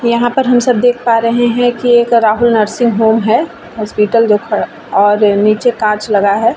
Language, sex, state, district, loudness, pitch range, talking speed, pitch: Hindi, female, Bihar, Vaishali, -11 LUFS, 215-240 Hz, 190 wpm, 230 Hz